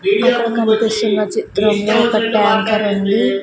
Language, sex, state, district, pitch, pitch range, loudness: Telugu, female, Andhra Pradesh, Sri Satya Sai, 215 Hz, 210-225 Hz, -15 LUFS